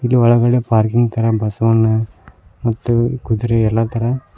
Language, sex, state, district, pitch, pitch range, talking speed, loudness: Kannada, male, Karnataka, Koppal, 115 Hz, 110-120 Hz, 110 wpm, -16 LUFS